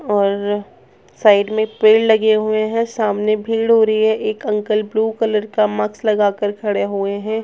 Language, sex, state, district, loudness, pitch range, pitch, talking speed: Bhojpuri, female, Bihar, Saran, -17 LUFS, 210-220 Hz, 215 Hz, 180 wpm